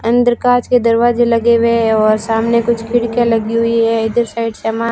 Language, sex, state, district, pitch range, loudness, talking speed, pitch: Hindi, female, Rajasthan, Barmer, 225-240 Hz, -14 LUFS, 205 wpm, 230 Hz